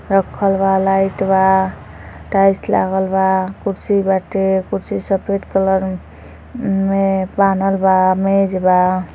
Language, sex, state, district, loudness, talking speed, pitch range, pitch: Hindi, female, Uttar Pradesh, Deoria, -16 LUFS, 110 wpm, 190-195 Hz, 195 Hz